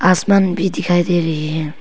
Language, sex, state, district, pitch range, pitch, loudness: Hindi, female, Arunachal Pradesh, Papum Pare, 160-185 Hz, 175 Hz, -16 LUFS